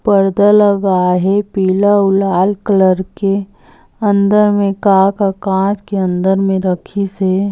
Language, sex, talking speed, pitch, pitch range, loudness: Chhattisgarhi, female, 130 wpm, 195 Hz, 190-205 Hz, -13 LUFS